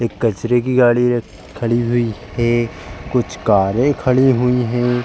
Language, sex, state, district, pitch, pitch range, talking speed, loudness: Hindi, male, Uttar Pradesh, Jalaun, 120 Hz, 115-125 Hz, 155 wpm, -17 LUFS